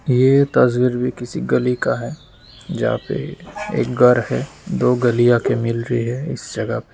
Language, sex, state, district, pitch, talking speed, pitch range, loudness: Hindi, male, West Bengal, Jalpaiguri, 125 Hz, 190 wpm, 120-125 Hz, -18 LUFS